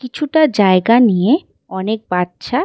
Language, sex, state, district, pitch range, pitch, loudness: Bengali, female, West Bengal, Dakshin Dinajpur, 190-260 Hz, 225 Hz, -15 LUFS